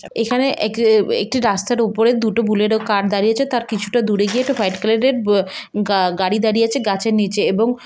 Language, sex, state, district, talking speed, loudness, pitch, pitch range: Bengali, female, West Bengal, Malda, 170 wpm, -17 LUFS, 220 Hz, 205-235 Hz